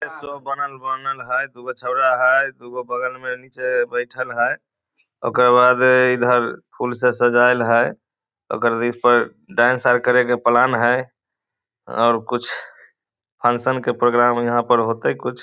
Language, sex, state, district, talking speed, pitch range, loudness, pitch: Maithili, male, Bihar, Samastipur, 150 wpm, 120-130 Hz, -18 LUFS, 125 Hz